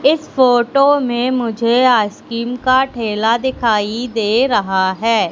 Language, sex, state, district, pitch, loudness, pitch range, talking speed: Hindi, female, Madhya Pradesh, Katni, 240 Hz, -15 LUFS, 225-255 Hz, 125 wpm